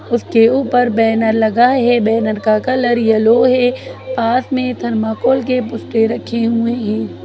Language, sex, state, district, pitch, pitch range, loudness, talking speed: Hindi, female, Bihar, Jahanabad, 230 Hz, 225-250 Hz, -14 LUFS, 150 wpm